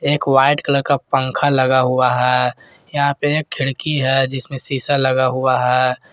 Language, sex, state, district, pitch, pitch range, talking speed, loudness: Hindi, male, Jharkhand, Garhwa, 135 Hz, 130-140 Hz, 165 wpm, -17 LUFS